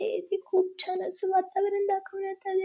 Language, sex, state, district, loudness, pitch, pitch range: Marathi, female, Maharashtra, Dhule, -29 LUFS, 385 Hz, 375-400 Hz